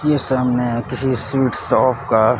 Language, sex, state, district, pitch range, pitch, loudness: Hindi, male, Chhattisgarh, Raipur, 125-135 Hz, 130 Hz, -17 LUFS